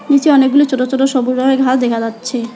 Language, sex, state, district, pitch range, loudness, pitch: Bengali, female, West Bengal, Alipurduar, 250-270 Hz, -13 LUFS, 260 Hz